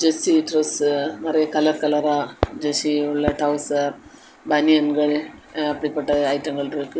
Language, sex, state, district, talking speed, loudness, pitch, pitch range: Tamil, female, Tamil Nadu, Kanyakumari, 95 wpm, -21 LUFS, 150 Hz, 145-155 Hz